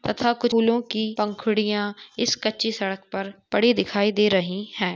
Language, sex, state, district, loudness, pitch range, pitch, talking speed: Hindi, female, Jharkhand, Sahebganj, -23 LUFS, 200-225 Hz, 210 Hz, 170 wpm